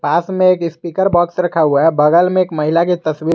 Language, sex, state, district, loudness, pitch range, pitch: Hindi, male, Jharkhand, Garhwa, -14 LUFS, 160-180 Hz, 170 Hz